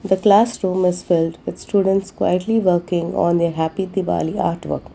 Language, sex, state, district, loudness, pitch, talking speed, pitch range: English, female, Karnataka, Bangalore, -19 LUFS, 185 Hz, 180 wpm, 175-195 Hz